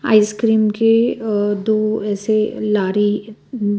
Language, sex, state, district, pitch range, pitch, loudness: Hindi, female, Bihar, West Champaran, 205-220 Hz, 215 Hz, -17 LUFS